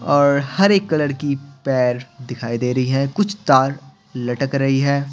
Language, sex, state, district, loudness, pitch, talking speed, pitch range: Hindi, male, Bihar, Patna, -18 LUFS, 140 Hz, 165 wpm, 130-140 Hz